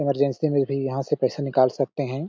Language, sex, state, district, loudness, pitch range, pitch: Hindi, male, Chhattisgarh, Balrampur, -23 LUFS, 135-140 Hz, 140 Hz